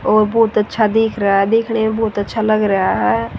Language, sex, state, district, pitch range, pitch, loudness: Hindi, female, Haryana, Rohtak, 200-225 Hz, 215 Hz, -16 LUFS